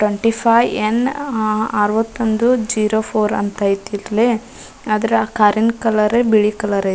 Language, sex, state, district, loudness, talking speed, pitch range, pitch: Kannada, female, Karnataka, Dharwad, -17 LUFS, 130 wpm, 210-230 Hz, 220 Hz